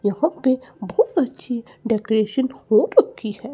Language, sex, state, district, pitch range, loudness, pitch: Hindi, male, Chandigarh, Chandigarh, 220-270 Hz, -21 LUFS, 245 Hz